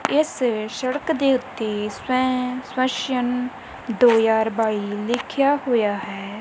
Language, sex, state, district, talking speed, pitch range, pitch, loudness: Punjabi, female, Punjab, Kapurthala, 95 wpm, 220-255 Hz, 245 Hz, -22 LUFS